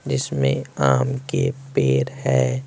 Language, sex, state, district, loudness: Hindi, male, Bihar, West Champaran, -21 LUFS